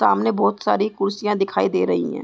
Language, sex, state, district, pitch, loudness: Hindi, female, Chhattisgarh, Raigarh, 195 Hz, -20 LUFS